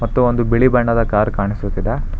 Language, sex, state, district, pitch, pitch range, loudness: Kannada, male, Karnataka, Bangalore, 115 Hz, 100-120 Hz, -17 LUFS